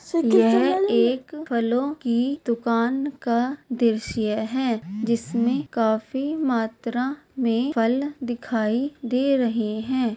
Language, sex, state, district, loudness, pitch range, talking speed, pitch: Hindi, female, Bihar, Purnia, -23 LUFS, 230-270 Hz, 100 wpm, 240 Hz